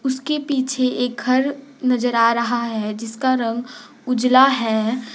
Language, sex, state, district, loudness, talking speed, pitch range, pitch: Hindi, female, Jharkhand, Garhwa, -19 LUFS, 140 wpm, 235-260 Hz, 250 Hz